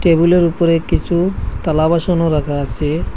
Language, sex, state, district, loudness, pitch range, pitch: Bengali, male, Assam, Hailakandi, -15 LUFS, 155-170 Hz, 165 Hz